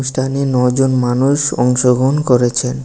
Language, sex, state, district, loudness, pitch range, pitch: Bengali, male, Tripura, West Tripura, -14 LUFS, 125-135 Hz, 130 Hz